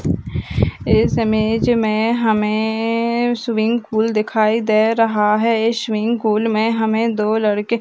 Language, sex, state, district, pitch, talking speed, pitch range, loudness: Hindi, female, Bihar, Madhepura, 220 Hz, 125 wpm, 215-230 Hz, -17 LUFS